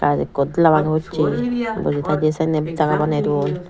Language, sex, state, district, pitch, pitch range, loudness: Chakma, female, Tripura, Dhalai, 155 Hz, 150-165 Hz, -19 LUFS